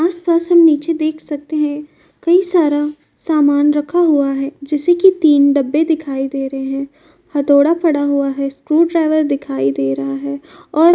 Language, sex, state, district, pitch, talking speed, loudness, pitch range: Hindi, female, Uttar Pradesh, Jyotiba Phule Nagar, 295 Hz, 175 wpm, -15 LUFS, 280-325 Hz